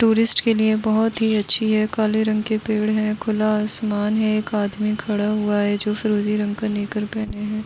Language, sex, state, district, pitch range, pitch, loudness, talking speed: Hindi, female, Uttar Pradesh, Muzaffarnagar, 210-220 Hz, 215 Hz, -20 LUFS, 210 wpm